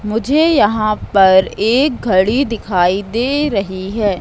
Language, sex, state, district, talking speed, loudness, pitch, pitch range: Hindi, female, Madhya Pradesh, Katni, 130 wpm, -14 LUFS, 215 Hz, 195-245 Hz